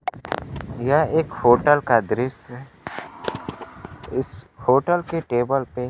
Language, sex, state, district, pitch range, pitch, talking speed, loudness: Hindi, male, Bihar, Kaimur, 125-155 Hz, 130 Hz, 110 wpm, -21 LUFS